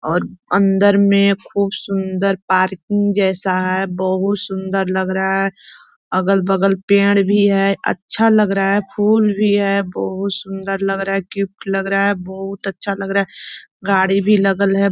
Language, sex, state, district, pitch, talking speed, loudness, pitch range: Hindi, female, Chhattisgarh, Korba, 195 Hz, 175 wpm, -17 LUFS, 190-200 Hz